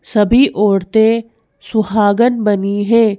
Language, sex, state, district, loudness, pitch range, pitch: Hindi, female, Madhya Pradesh, Bhopal, -13 LUFS, 205-230 Hz, 215 Hz